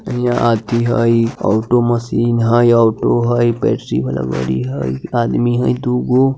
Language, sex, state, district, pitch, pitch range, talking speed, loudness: Hindi, male, Bihar, Muzaffarpur, 115 Hz, 110-120 Hz, 130 wpm, -15 LUFS